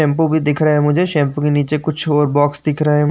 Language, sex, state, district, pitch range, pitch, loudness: Hindi, male, Uttar Pradesh, Jyotiba Phule Nagar, 145-155 Hz, 150 Hz, -16 LUFS